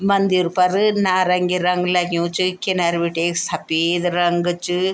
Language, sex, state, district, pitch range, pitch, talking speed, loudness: Garhwali, female, Uttarakhand, Tehri Garhwal, 175-185 Hz, 180 Hz, 145 wpm, -19 LUFS